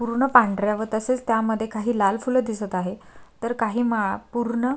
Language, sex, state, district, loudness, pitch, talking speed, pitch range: Marathi, female, Maharashtra, Sindhudurg, -23 LUFS, 225 Hz, 190 wpm, 215-240 Hz